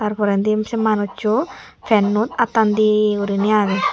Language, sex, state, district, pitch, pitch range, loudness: Chakma, female, Tripura, Unakoti, 215 Hz, 205-215 Hz, -18 LUFS